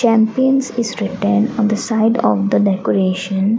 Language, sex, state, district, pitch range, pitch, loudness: English, female, Assam, Kamrup Metropolitan, 195-230 Hz, 215 Hz, -16 LUFS